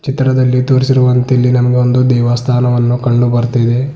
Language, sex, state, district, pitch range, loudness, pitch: Kannada, male, Karnataka, Bidar, 120-130 Hz, -11 LUFS, 125 Hz